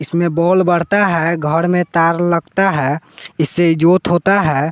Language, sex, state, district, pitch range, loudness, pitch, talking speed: Hindi, male, Bihar, West Champaran, 160-180 Hz, -14 LUFS, 170 Hz, 165 wpm